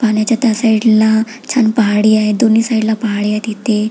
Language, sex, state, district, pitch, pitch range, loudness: Marathi, female, Maharashtra, Pune, 220 Hz, 215-230 Hz, -13 LUFS